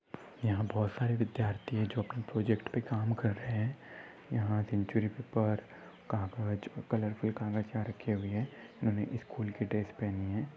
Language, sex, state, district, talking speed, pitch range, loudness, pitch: Hindi, male, Maharashtra, Dhule, 175 wpm, 105-115 Hz, -35 LUFS, 110 Hz